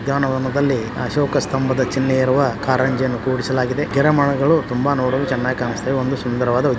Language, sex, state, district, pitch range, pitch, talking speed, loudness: Kannada, male, Karnataka, Belgaum, 130-140 Hz, 130 Hz, 140 wpm, -19 LUFS